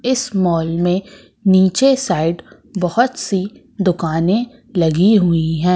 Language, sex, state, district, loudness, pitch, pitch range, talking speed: Hindi, female, Madhya Pradesh, Katni, -16 LUFS, 190 Hz, 170-220 Hz, 115 wpm